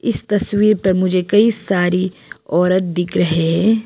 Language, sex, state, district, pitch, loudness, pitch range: Hindi, female, Arunachal Pradesh, Papum Pare, 185 Hz, -16 LUFS, 180-210 Hz